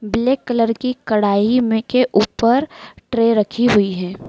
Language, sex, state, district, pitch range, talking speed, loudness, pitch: Hindi, female, Madhya Pradesh, Dhar, 210-250 Hz, 155 wpm, -17 LUFS, 230 Hz